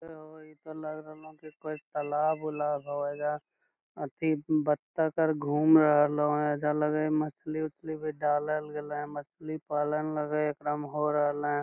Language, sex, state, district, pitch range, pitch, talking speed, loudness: Magahi, male, Bihar, Lakhisarai, 150-155 Hz, 150 Hz, 175 wpm, -30 LUFS